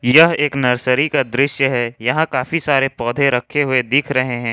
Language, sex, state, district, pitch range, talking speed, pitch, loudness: Hindi, male, Jharkhand, Ranchi, 125-145 Hz, 200 wpm, 130 Hz, -16 LUFS